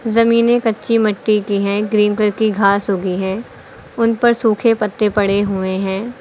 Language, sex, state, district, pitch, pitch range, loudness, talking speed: Hindi, female, Uttar Pradesh, Lucknow, 210 Hz, 200-230 Hz, -16 LUFS, 165 wpm